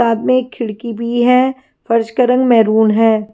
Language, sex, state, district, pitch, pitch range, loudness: Hindi, female, Himachal Pradesh, Shimla, 235 Hz, 225-250 Hz, -14 LUFS